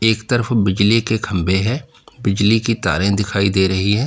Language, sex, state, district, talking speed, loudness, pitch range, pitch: Hindi, male, Uttar Pradesh, Lalitpur, 190 wpm, -17 LUFS, 100-115 Hz, 105 Hz